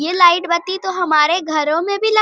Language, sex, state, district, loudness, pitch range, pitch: Hindi, female, Bihar, Bhagalpur, -16 LUFS, 320-375 Hz, 350 Hz